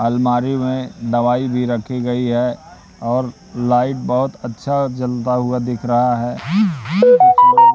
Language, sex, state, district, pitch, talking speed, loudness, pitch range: Hindi, male, Madhya Pradesh, Katni, 125 Hz, 125 wpm, -16 LUFS, 120-135 Hz